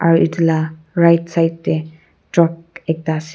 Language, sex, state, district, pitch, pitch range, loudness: Nagamese, female, Nagaland, Kohima, 165 Hz, 160-170 Hz, -17 LUFS